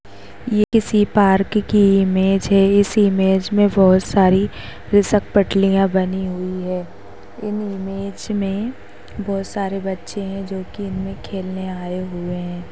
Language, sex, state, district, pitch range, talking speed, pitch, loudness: Hindi, female, Maharashtra, Sindhudurg, 185-205 Hz, 140 wpm, 195 Hz, -18 LUFS